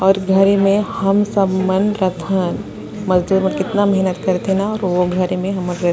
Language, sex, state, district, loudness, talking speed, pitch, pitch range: Surgujia, female, Chhattisgarh, Sarguja, -17 LUFS, 200 wpm, 190 Hz, 185-195 Hz